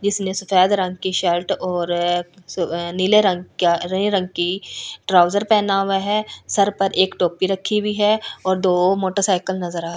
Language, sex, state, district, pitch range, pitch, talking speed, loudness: Hindi, female, Delhi, New Delhi, 175-195 Hz, 190 Hz, 180 wpm, -19 LUFS